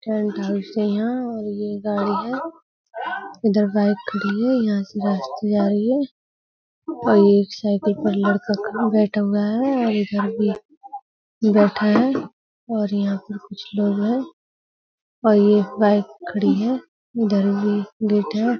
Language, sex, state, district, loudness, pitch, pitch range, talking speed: Hindi, female, Uttar Pradesh, Budaun, -20 LUFS, 210 Hz, 205-230 Hz, 150 wpm